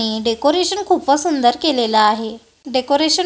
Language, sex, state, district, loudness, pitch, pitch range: Marathi, female, Maharashtra, Gondia, -16 LUFS, 280 Hz, 230-315 Hz